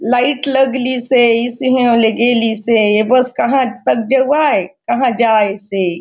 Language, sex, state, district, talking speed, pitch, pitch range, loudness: Halbi, female, Chhattisgarh, Bastar, 150 wpm, 245 Hz, 225-260 Hz, -14 LUFS